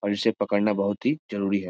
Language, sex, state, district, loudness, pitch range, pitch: Hindi, male, Bihar, Jamui, -25 LUFS, 100-105 Hz, 100 Hz